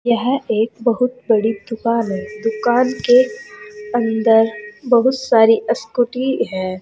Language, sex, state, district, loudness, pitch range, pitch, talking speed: Hindi, female, Uttar Pradesh, Saharanpur, -17 LUFS, 225-250 Hz, 235 Hz, 115 wpm